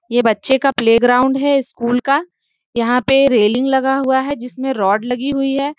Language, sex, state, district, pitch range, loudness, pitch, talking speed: Hindi, female, Jharkhand, Sahebganj, 245-275 Hz, -15 LUFS, 265 Hz, 185 wpm